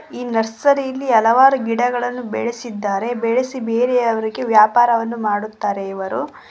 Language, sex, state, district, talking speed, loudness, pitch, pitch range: Kannada, female, Karnataka, Koppal, 100 wpm, -18 LUFS, 235 Hz, 220-250 Hz